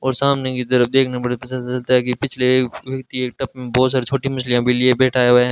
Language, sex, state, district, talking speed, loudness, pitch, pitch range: Hindi, male, Rajasthan, Bikaner, 215 wpm, -18 LUFS, 125 Hz, 125-130 Hz